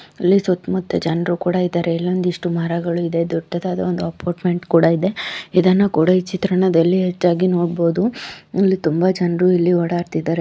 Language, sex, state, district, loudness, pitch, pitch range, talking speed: Kannada, female, Karnataka, Shimoga, -18 LUFS, 175 Hz, 170-185 Hz, 115 wpm